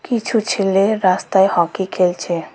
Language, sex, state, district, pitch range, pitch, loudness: Bengali, female, West Bengal, Alipurduar, 180-215 Hz, 190 Hz, -17 LUFS